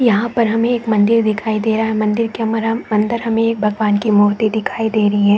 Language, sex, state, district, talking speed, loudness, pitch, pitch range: Hindi, female, Chhattisgarh, Raigarh, 245 wpm, -16 LUFS, 220 Hz, 210-230 Hz